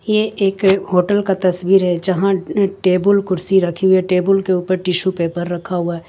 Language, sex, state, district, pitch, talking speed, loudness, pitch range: Hindi, female, Jharkhand, Ranchi, 185 Hz, 195 wpm, -16 LUFS, 180-195 Hz